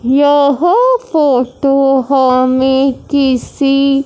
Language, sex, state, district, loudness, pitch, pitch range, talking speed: Hindi, male, Punjab, Fazilka, -11 LUFS, 275 Hz, 260-285 Hz, 60 wpm